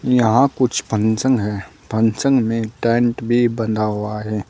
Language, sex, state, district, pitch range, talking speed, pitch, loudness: Hindi, male, Uttar Pradesh, Saharanpur, 110-125 Hz, 145 wpm, 115 Hz, -18 LUFS